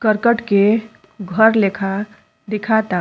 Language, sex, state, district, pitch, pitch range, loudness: Bhojpuri, female, Uttar Pradesh, Ghazipur, 215 Hz, 200-220 Hz, -17 LUFS